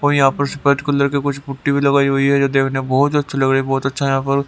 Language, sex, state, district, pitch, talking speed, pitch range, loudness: Hindi, male, Haryana, Rohtak, 140 Hz, 310 wpm, 135-140 Hz, -17 LUFS